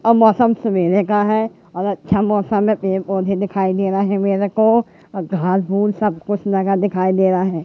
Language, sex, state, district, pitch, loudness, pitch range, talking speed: Hindi, male, Madhya Pradesh, Katni, 195 Hz, -17 LUFS, 190-210 Hz, 195 wpm